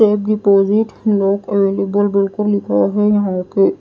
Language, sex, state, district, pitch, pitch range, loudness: Hindi, female, Odisha, Nuapada, 200 Hz, 195-210 Hz, -15 LUFS